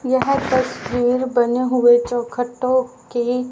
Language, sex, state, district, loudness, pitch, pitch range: Hindi, female, Haryana, Rohtak, -19 LUFS, 250 Hz, 245-255 Hz